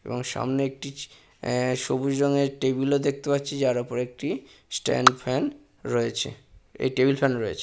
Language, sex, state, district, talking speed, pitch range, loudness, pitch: Bengali, male, West Bengal, Purulia, 155 wpm, 125-140 Hz, -26 LUFS, 135 Hz